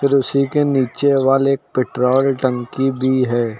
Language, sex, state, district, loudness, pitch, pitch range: Hindi, male, Uttar Pradesh, Lucknow, -17 LUFS, 135 Hz, 130-140 Hz